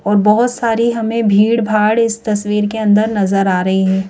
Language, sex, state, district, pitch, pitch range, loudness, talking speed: Hindi, female, Madhya Pradesh, Bhopal, 210 Hz, 200-225 Hz, -14 LUFS, 205 wpm